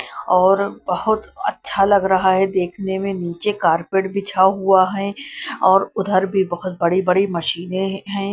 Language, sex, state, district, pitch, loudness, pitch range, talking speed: Hindi, female, Punjab, Kapurthala, 190 Hz, -18 LUFS, 185-195 Hz, 150 wpm